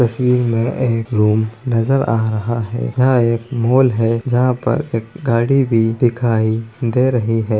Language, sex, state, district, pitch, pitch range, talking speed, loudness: Hindi, female, Bihar, Darbhanga, 115 Hz, 115-125 Hz, 165 wpm, -16 LUFS